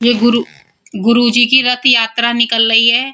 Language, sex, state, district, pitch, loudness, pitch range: Hindi, female, Uttar Pradesh, Muzaffarnagar, 235 Hz, -11 LUFS, 230-240 Hz